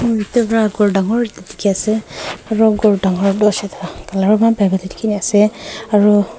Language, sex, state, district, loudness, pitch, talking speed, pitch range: Nagamese, female, Nagaland, Kohima, -15 LUFS, 210 Hz, 195 wpm, 195-220 Hz